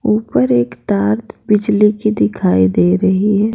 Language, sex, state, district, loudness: Hindi, female, Bihar, Patna, -14 LUFS